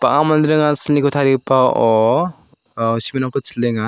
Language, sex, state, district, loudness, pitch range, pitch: Garo, male, Meghalaya, South Garo Hills, -16 LUFS, 120-150 Hz, 135 Hz